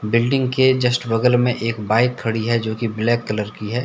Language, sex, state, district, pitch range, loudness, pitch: Hindi, male, Jharkhand, Deoghar, 110-125 Hz, -19 LUFS, 115 Hz